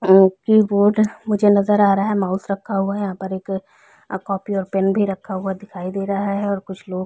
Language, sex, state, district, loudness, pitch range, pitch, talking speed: Hindi, female, Chhattisgarh, Rajnandgaon, -19 LUFS, 190-205 Hz, 195 Hz, 210 wpm